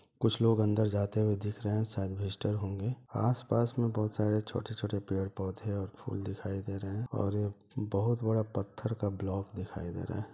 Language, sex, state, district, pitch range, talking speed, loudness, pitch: Hindi, male, Bihar, Madhepura, 100-115 Hz, 205 wpm, -34 LUFS, 105 Hz